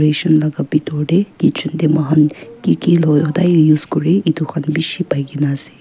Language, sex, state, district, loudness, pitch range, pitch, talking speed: Nagamese, female, Nagaland, Kohima, -15 LUFS, 150-165 Hz, 155 Hz, 185 wpm